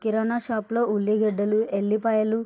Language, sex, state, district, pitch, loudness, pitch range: Telugu, female, Andhra Pradesh, Srikakulam, 220 Hz, -24 LUFS, 210-225 Hz